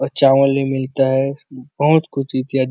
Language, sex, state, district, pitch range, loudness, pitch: Hindi, male, Chhattisgarh, Bastar, 130-140 Hz, -17 LUFS, 135 Hz